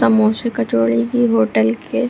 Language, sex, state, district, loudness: Hindi, female, Bihar, Supaul, -16 LUFS